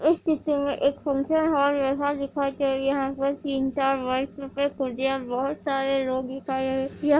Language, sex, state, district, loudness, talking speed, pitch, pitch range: Hindi, female, Andhra Pradesh, Anantapur, -26 LUFS, 185 wpm, 275 Hz, 270-285 Hz